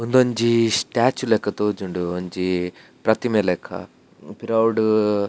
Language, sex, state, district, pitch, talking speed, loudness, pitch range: Tulu, male, Karnataka, Dakshina Kannada, 110 Hz, 90 wpm, -21 LUFS, 95-115 Hz